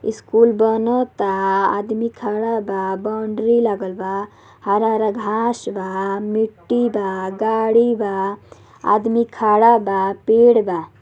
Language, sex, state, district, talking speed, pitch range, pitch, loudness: Bhojpuri, female, Uttar Pradesh, Deoria, 115 wpm, 195-230 Hz, 215 Hz, -18 LUFS